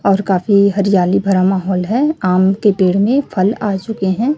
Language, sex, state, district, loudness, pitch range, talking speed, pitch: Hindi, female, Chhattisgarh, Raipur, -14 LUFS, 190-210 Hz, 190 wpm, 195 Hz